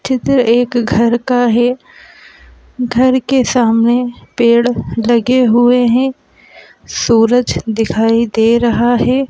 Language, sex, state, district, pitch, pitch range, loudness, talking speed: Hindi, male, Madhya Pradesh, Bhopal, 240 Hz, 230-250 Hz, -12 LUFS, 110 wpm